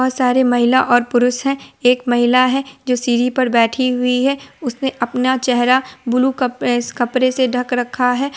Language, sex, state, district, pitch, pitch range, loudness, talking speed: Hindi, female, Bihar, Supaul, 250 Hz, 245-260 Hz, -16 LUFS, 185 wpm